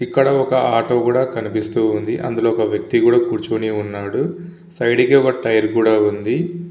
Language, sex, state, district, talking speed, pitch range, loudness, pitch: Telugu, male, Andhra Pradesh, Visakhapatnam, 145 wpm, 110-140 Hz, -17 LUFS, 120 Hz